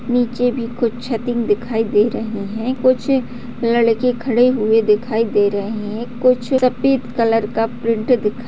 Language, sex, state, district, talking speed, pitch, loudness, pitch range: Hindi, female, Bihar, Jahanabad, 165 wpm, 235 Hz, -18 LUFS, 225-245 Hz